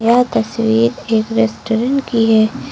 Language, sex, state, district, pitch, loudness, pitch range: Hindi, female, Uttar Pradesh, Lucknow, 225 Hz, -15 LUFS, 220-240 Hz